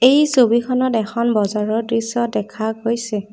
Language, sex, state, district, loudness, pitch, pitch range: Assamese, female, Assam, Kamrup Metropolitan, -18 LUFS, 230 Hz, 215-240 Hz